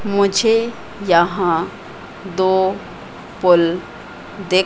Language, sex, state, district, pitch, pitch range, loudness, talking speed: Hindi, female, Madhya Pradesh, Katni, 190 Hz, 180-200 Hz, -17 LUFS, 65 wpm